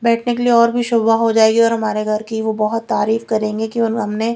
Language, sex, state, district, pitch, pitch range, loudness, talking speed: Hindi, female, Bihar, Katihar, 225 Hz, 220-230 Hz, -16 LUFS, 235 wpm